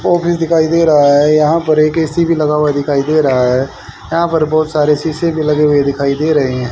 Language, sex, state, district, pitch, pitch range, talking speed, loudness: Hindi, male, Haryana, Rohtak, 155 Hz, 145-160 Hz, 250 wpm, -12 LUFS